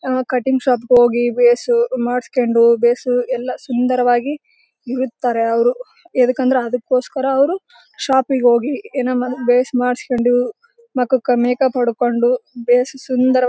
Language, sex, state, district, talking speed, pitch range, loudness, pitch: Kannada, female, Karnataka, Bellary, 115 wpm, 245-265 Hz, -17 LUFS, 250 Hz